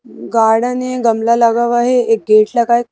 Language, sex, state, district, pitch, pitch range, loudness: Hindi, female, Madhya Pradesh, Bhopal, 235 Hz, 225-240 Hz, -13 LUFS